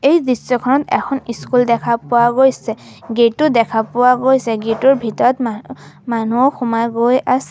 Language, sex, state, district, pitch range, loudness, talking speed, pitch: Assamese, female, Assam, Sonitpur, 230-260 Hz, -15 LUFS, 160 wpm, 245 Hz